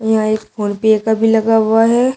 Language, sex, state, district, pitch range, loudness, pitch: Hindi, female, Uttar Pradesh, Shamli, 215-225 Hz, -14 LUFS, 220 Hz